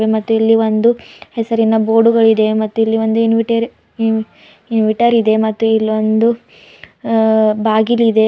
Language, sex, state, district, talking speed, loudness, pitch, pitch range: Kannada, female, Karnataka, Bidar, 115 wpm, -14 LUFS, 225 Hz, 220-230 Hz